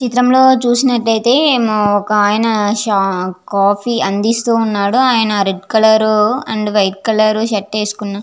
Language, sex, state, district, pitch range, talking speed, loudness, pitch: Telugu, female, Andhra Pradesh, Visakhapatnam, 205-235 Hz, 115 wpm, -13 LUFS, 215 Hz